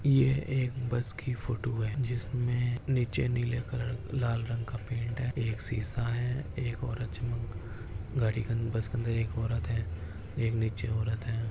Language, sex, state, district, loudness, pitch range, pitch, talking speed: Hindi, male, Maharashtra, Dhule, -32 LUFS, 110-120 Hz, 115 Hz, 175 wpm